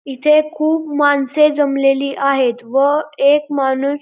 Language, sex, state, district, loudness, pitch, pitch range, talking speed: Marathi, male, Maharashtra, Pune, -15 LUFS, 285 Hz, 275-300 Hz, 120 wpm